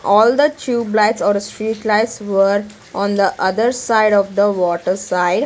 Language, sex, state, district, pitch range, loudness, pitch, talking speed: English, female, Punjab, Kapurthala, 195-220 Hz, -16 LUFS, 205 Hz, 165 wpm